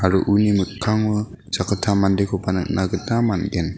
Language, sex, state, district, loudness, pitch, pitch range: Garo, male, Meghalaya, West Garo Hills, -20 LUFS, 100 Hz, 95-105 Hz